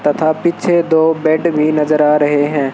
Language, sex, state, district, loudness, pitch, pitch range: Hindi, male, Rajasthan, Bikaner, -13 LUFS, 155 Hz, 150-160 Hz